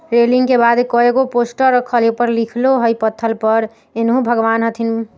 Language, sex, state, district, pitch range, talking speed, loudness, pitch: Bajjika, female, Bihar, Vaishali, 225-245 Hz, 195 wpm, -15 LUFS, 235 Hz